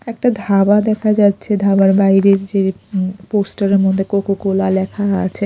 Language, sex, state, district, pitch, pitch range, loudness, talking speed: Bengali, female, Odisha, Khordha, 195 Hz, 195-205 Hz, -15 LUFS, 155 wpm